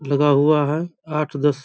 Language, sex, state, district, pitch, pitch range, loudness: Hindi, male, Bihar, Vaishali, 150 Hz, 145-155 Hz, -19 LUFS